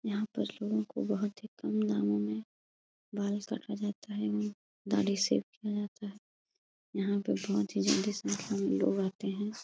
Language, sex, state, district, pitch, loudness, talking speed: Hindi, female, Bihar, Jahanabad, 195 Hz, -34 LUFS, 195 wpm